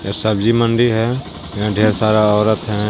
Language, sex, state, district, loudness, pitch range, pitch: Hindi, male, Jharkhand, Garhwa, -16 LUFS, 105-115 Hz, 110 Hz